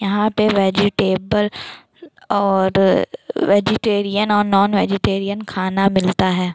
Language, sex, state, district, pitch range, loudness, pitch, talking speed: Hindi, female, Bihar, Jamui, 190-210 Hz, -17 LUFS, 200 Hz, 90 wpm